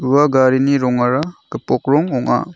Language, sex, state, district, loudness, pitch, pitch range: Garo, male, Meghalaya, South Garo Hills, -16 LUFS, 130 Hz, 130-140 Hz